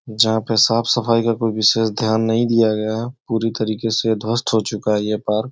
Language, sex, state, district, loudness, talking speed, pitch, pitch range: Hindi, male, Uttar Pradesh, Gorakhpur, -18 LUFS, 230 wpm, 110 Hz, 110-115 Hz